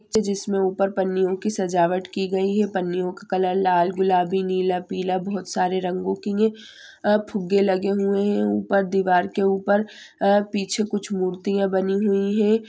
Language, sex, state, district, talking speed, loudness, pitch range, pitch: Hindi, female, Bihar, Saran, 160 wpm, -22 LUFS, 185-205 Hz, 195 Hz